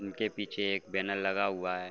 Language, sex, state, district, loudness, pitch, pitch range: Hindi, male, Uttar Pradesh, Varanasi, -33 LUFS, 100 Hz, 95-100 Hz